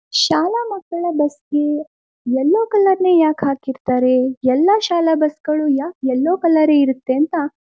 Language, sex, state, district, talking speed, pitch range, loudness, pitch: Kannada, female, Karnataka, Mysore, 140 wpm, 275-345 Hz, -17 LUFS, 305 Hz